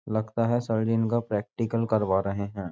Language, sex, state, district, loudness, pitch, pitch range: Hindi, male, Uttar Pradesh, Jyotiba Phule Nagar, -27 LUFS, 110 Hz, 100-115 Hz